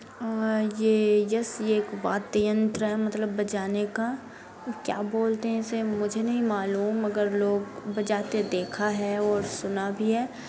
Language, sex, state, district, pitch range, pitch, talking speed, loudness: Hindi, female, Bihar, Gopalganj, 205-225 Hz, 215 Hz, 155 wpm, -27 LUFS